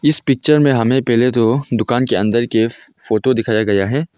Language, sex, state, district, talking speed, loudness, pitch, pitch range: Hindi, male, Arunachal Pradesh, Longding, 200 wpm, -15 LUFS, 120 Hz, 115-135 Hz